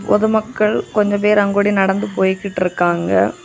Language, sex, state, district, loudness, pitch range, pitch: Tamil, female, Tamil Nadu, Kanyakumari, -16 LUFS, 190-210 Hz, 205 Hz